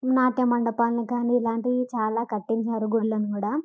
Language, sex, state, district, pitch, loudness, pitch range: Telugu, female, Telangana, Karimnagar, 235 Hz, -25 LUFS, 225-245 Hz